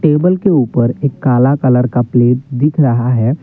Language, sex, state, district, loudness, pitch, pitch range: Hindi, male, Assam, Kamrup Metropolitan, -13 LUFS, 130 Hz, 125-145 Hz